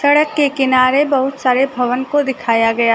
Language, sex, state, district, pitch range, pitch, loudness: Hindi, female, Jharkhand, Deoghar, 250-285 Hz, 265 Hz, -15 LUFS